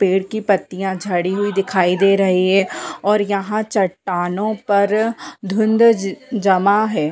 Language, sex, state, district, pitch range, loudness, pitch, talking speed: Hindi, female, Bihar, Bhagalpur, 190-210 Hz, -17 LUFS, 195 Hz, 135 wpm